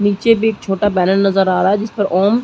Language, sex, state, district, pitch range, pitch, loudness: Hindi, female, Chhattisgarh, Sarguja, 190-210 Hz, 200 Hz, -15 LUFS